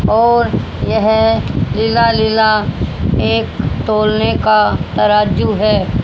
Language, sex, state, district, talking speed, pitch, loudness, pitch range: Hindi, female, Haryana, Jhajjar, 90 wpm, 215 Hz, -13 LUFS, 200-220 Hz